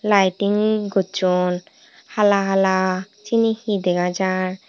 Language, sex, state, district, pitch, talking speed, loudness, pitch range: Chakma, female, Tripura, Unakoti, 195 Hz, 100 wpm, -20 LUFS, 185-210 Hz